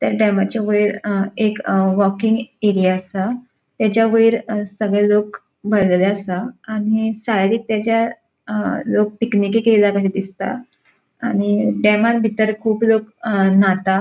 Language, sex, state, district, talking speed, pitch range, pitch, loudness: Konkani, female, Goa, North and South Goa, 125 wpm, 200-225 Hz, 210 Hz, -17 LUFS